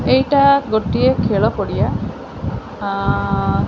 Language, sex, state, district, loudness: Odia, female, Odisha, Khordha, -17 LUFS